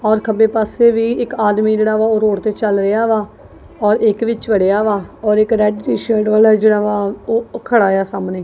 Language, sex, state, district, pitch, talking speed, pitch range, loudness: Punjabi, female, Punjab, Kapurthala, 215 Hz, 215 wpm, 210-220 Hz, -15 LUFS